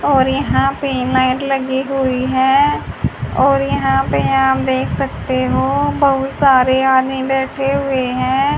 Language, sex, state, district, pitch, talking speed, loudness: Hindi, female, Haryana, Charkhi Dadri, 260 Hz, 140 wpm, -15 LUFS